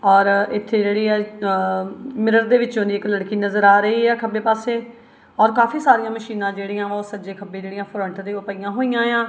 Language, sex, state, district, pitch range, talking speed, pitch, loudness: Punjabi, female, Punjab, Kapurthala, 200-230 Hz, 205 wpm, 210 Hz, -19 LUFS